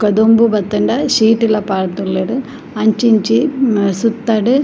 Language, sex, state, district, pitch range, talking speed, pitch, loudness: Tulu, female, Karnataka, Dakshina Kannada, 210-235 Hz, 115 wpm, 220 Hz, -14 LUFS